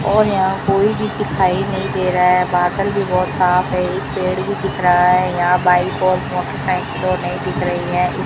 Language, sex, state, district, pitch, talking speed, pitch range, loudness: Hindi, female, Rajasthan, Bikaner, 180 Hz, 205 wpm, 180-185 Hz, -17 LUFS